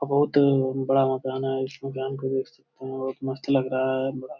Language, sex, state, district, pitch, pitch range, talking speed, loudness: Hindi, male, Bihar, Jamui, 135 Hz, 130-135 Hz, 230 wpm, -25 LUFS